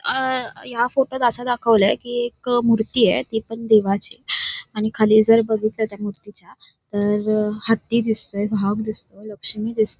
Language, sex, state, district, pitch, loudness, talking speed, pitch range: Marathi, female, Maharashtra, Dhule, 220 Hz, -20 LUFS, 150 wpm, 210-240 Hz